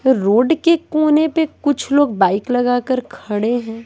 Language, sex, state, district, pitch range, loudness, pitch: Hindi, female, Bihar, West Champaran, 225-305 Hz, -16 LUFS, 255 Hz